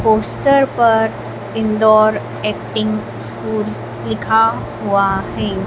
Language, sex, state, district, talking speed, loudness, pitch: Hindi, female, Madhya Pradesh, Dhar, 85 wpm, -16 LUFS, 215 Hz